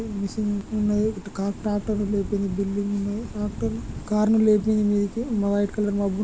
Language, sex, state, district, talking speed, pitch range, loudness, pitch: Telugu, male, Andhra Pradesh, Guntur, 125 wpm, 200-215 Hz, -24 LUFS, 205 Hz